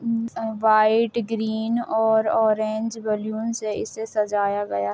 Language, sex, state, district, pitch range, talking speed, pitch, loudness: Hindi, female, Jharkhand, Jamtara, 215-225 Hz, 135 wpm, 220 Hz, -23 LUFS